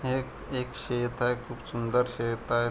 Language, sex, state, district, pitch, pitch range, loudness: Marathi, male, Maharashtra, Pune, 120 Hz, 120-125 Hz, -31 LUFS